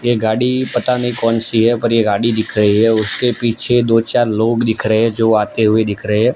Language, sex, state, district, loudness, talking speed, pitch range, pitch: Hindi, male, Gujarat, Gandhinagar, -15 LUFS, 255 wpm, 110-120 Hz, 115 Hz